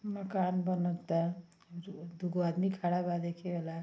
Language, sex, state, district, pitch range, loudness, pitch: Hindi, female, Uttar Pradesh, Ghazipur, 170-185 Hz, -34 LUFS, 175 Hz